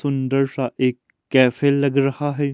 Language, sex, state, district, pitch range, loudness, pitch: Hindi, male, Himachal Pradesh, Shimla, 130-140 Hz, -20 LUFS, 135 Hz